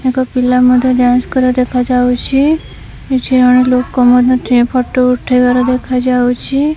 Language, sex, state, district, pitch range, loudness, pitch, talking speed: Odia, female, Odisha, Khordha, 250-255 Hz, -11 LUFS, 250 Hz, 125 wpm